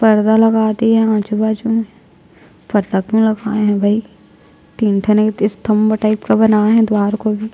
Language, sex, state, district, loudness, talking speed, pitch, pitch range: Hindi, female, Chhattisgarh, Jashpur, -14 LUFS, 165 wpm, 215 Hz, 210-220 Hz